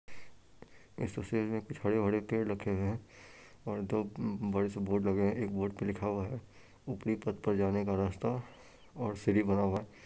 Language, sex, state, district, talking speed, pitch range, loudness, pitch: Hindi, male, Bihar, Purnia, 190 wpm, 100-110 Hz, -34 LUFS, 105 Hz